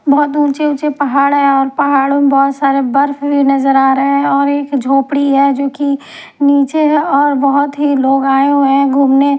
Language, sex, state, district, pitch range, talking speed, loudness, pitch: Hindi, female, Himachal Pradesh, Shimla, 275-285 Hz, 210 wpm, -12 LUFS, 280 Hz